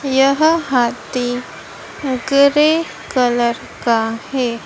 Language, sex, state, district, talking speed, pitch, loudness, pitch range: Hindi, female, Madhya Pradesh, Dhar, 75 wpm, 255 Hz, -17 LUFS, 240-280 Hz